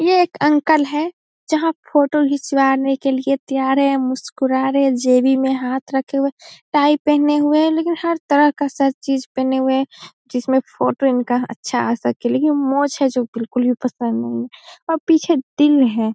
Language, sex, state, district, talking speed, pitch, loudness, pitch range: Hindi, female, Bihar, Saharsa, 175 wpm, 275 Hz, -18 LUFS, 260-295 Hz